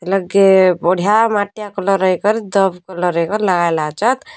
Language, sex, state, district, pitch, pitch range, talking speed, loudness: Odia, female, Odisha, Malkangiri, 195 Hz, 180-210 Hz, 150 wpm, -15 LUFS